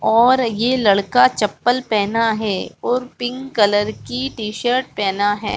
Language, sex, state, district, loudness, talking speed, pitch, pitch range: Hindi, female, Chhattisgarh, Balrampur, -18 LUFS, 140 wpm, 220 Hz, 205-245 Hz